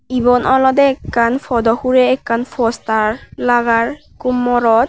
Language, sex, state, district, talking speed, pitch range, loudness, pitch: Chakma, female, Tripura, West Tripura, 125 wpm, 230-255 Hz, -15 LUFS, 245 Hz